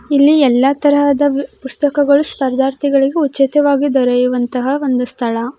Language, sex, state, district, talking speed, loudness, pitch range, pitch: Kannada, female, Karnataka, Belgaum, 95 wpm, -14 LUFS, 255-285 Hz, 275 Hz